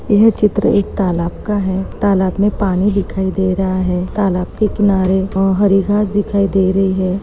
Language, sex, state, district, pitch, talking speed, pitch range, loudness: Hindi, female, Maharashtra, Chandrapur, 195 Hz, 185 wpm, 190-205 Hz, -15 LUFS